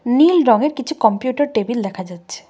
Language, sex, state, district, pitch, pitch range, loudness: Bengali, female, West Bengal, Cooch Behar, 245 Hz, 220-290 Hz, -16 LUFS